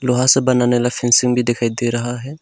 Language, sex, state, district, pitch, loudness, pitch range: Hindi, male, Arunachal Pradesh, Longding, 120 Hz, -16 LUFS, 120-125 Hz